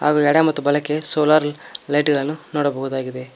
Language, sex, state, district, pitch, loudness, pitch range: Kannada, male, Karnataka, Koppal, 150 Hz, -19 LUFS, 140-150 Hz